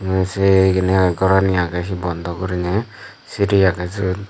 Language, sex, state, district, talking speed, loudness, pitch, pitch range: Chakma, male, Tripura, Dhalai, 155 wpm, -18 LUFS, 95 Hz, 90-95 Hz